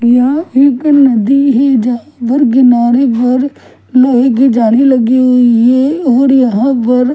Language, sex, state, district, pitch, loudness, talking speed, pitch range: Hindi, female, Delhi, New Delhi, 255 Hz, -9 LUFS, 145 wpm, 245-270 Hz